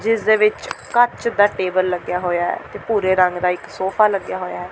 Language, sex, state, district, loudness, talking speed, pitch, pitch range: Punjabi, female, Delhi, New Delhi, -19 LUFS, 230 wpm, 190 Hz, 180-215 Hz